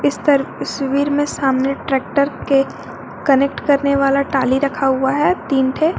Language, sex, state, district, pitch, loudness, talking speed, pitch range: Hindi, female, Jharkhand, Garhwa, 275 Hz, -17 LUFS, 160 wpm, 270-285 Hz